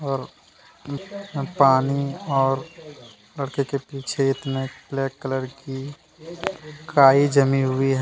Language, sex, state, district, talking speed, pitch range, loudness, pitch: Hindi, male, Jharkhand, Deoghar, 105 wpm, 135-145 Hz, -22 LUFS, 140 Hz